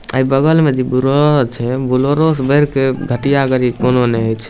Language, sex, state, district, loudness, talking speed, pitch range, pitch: Maithili, male, Bihar, Samastipur, -14 LUFS, 215 wpm, 125-140 Hz, 130 Hz